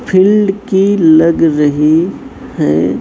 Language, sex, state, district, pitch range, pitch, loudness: Hindi, female, Chhattisgarh, Raipur, 150-195 Hz, 165 Hz, -11 LUFS